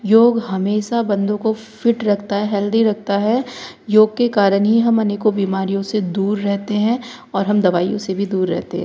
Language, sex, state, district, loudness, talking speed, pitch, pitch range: Hindi, female, Uttar Pradesh, Hamirpur, -18 LUFS, 195 wpm, 210 Hz, 200-225 Hz